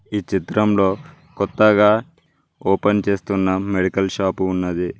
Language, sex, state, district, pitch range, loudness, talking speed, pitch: Telugu, male, Telangana, Mahabubabad, 95-105 Hz, -19 LUFS, 95 wpm, 100 Hz